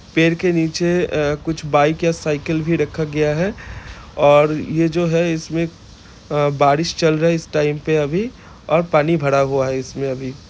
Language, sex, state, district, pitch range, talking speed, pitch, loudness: Hindi, male, Bihar, Gopalganj, 145-165 Hz, 190 wpm, 155 Hz, -18 LUFS